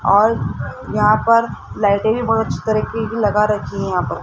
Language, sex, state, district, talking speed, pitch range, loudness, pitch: Hindi, female, Rajasthan, Jaipur, 200 wpm, 205-225 Hz, -17 LUFS, 215 Hz